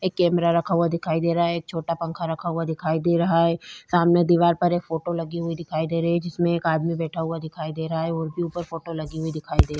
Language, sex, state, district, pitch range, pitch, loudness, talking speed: Hindi, female, Bihar, Vaishali, 160-170 Hz, 165 Hz, -24 LUFS, 280 wpm